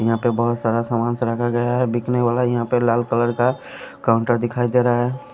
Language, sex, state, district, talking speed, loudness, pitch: Hindi, male, Punjab, Kapurthala, 225 wpm, -20 LUFS, 120 Hz